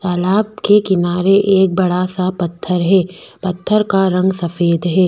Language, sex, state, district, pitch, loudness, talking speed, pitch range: Hindi, female, Chhattisgarh, Bastar, 185 Hz, -15 LUFS, 155 wpm, 180-195 Hz